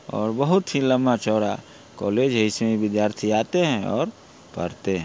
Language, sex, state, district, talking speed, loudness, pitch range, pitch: Hindi, male, Bihar, Muzaffarpur, 155 wpm, -22 LUFS, 105-130 Hz, 110 Hz